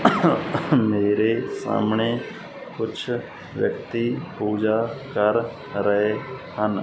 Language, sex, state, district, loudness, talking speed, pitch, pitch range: Punjabi, male, Punjab, Fazilka, -23 LUFS, 70 wpm, 110 Hz, 105-115 Hz